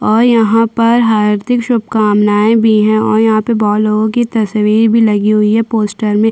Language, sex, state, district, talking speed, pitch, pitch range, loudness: Hindi, female, Chhattisgarh, Sukma, 200 wpm, 220 Hz, 210-230 Hz, -11 LUFS